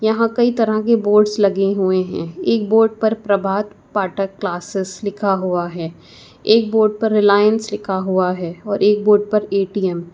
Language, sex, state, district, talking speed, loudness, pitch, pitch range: Hindi, female, Uttar Pradesh, Lucknow, 175 wpm, -17 LUFS, 205 Hz, 190-215 Hz